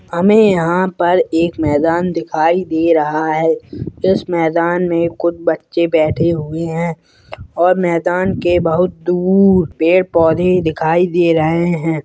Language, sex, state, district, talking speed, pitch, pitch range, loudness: Hindi, male, Bihar, Purnia, 140 wpm, 170 Hz, 160-180 Hz, -14 LUFS